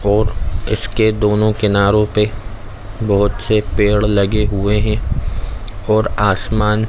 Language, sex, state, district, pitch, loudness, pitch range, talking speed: Hindi, male, Chhattisgarh, Korba, 105 Hz, -16 LUFS, 100-110 Hz, 115 wpm